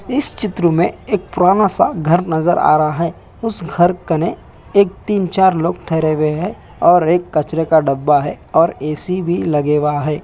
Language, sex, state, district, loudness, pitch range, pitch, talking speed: Hindi, male, Bihar, Samastipur, -16 LUFS, 155-185 Hz, 170 Hz, 175 wpm